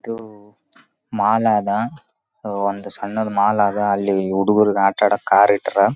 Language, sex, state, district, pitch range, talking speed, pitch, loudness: Kannada, male, Karnataka, Raichur, 100-105 Hz, 270 wpm, 105 Hz, -18 LUFS